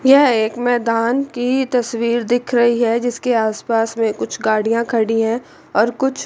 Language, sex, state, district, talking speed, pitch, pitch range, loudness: Hindi, female, Chandigarh, Chandigarh, 180 wpm, 235 Hz, 225-245 Hz, -17 LUFS